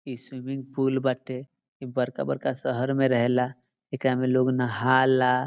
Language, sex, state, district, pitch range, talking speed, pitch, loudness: Bhojpuri, male, Bihar, Saran, 125-130 Hz, 145 wpm, 130 Hz, -25 LUFS